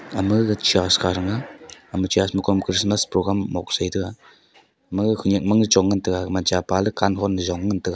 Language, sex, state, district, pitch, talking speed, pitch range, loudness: Wancho, male, Arunachal Pradesh, Longding, 95 Hz, 235 wpm, 95-100 Hz, -21 LUFS